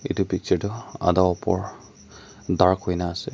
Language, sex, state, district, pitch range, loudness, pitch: Nagamese, male, Nagaland, Kohima, 90-95 Hz, -23 LUFS, 90 Hz